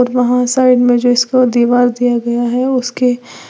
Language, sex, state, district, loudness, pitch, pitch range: Hindi, female, Uttar Pradesh, Lalitpur, -12 LUFS, 245 Hz, 245-250 Hz